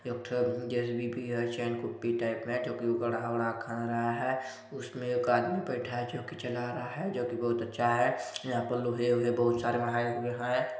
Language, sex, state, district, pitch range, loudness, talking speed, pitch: Hindi, male, Chhattisgarh, Balrampur, 120-125 Hz, -32 LUFS, 205 wpm, 120 Hz